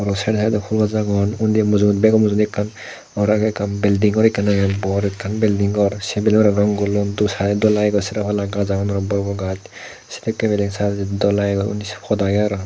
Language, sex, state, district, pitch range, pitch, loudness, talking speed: Chakma, male, Tripura, Dhalai, 100-105 Hz, 105 Hz, -18 LUFS, 205 wpm